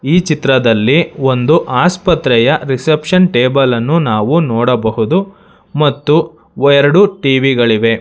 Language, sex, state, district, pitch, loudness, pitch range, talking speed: Kannada, male, Karnataka, Bangalore, 135 Hz, -12 LUFS, 125-165 Hz, 95 wpm